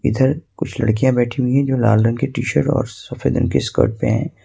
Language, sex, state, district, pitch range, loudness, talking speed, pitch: Hindi, male, Jharkhand, Ranchi, 115-135 Hz, -18 LUFS, 245 wpm, 130 Hz